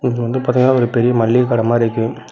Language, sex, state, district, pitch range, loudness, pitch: Tamil, male, Tamil Nadu, Namakkal, 115-125 Hz, -15 LUFS, 120 Hz